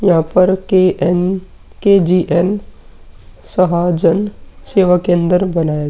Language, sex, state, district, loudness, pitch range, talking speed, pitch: Hindi, male, Uttar Pradesh, Muzaffarnagar, -14 LUFS, 175-190 Hz, 90 wpm, 180 Hz